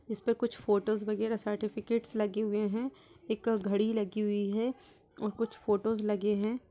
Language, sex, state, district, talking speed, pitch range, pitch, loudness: Hindi, female, Uttar Pradesh, Budaun, 170 wpm, 210-225 Hz, 215 Hz, -32 LUFS